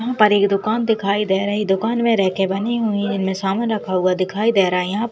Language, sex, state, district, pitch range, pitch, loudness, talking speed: Hindi, female, Uttarakhand, Uttarkashi, 190-220 Hz, 205 Hz, -19 LUFS, 270 wpm